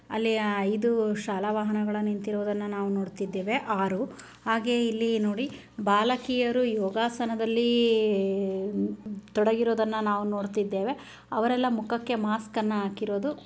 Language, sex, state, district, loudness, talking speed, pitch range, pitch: Kannada, female, Karnataka, Chamarajanagar, -27 LUFS, 110 wpm, 205-230 Hz, 215 Hz